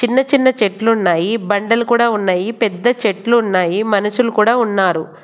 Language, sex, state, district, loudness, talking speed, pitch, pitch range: Telugu, female, Andhra Pradesh, Annamaya, -15 LUFS, 135 wpm, 220 Hz, 195-235 Hz